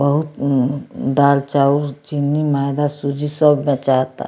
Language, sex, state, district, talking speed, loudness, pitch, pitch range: Bhojpuri, female, Bihar, Muzaffarpur, 125 wpm, -17 LUFS, 140 Hz, 140-145 Hz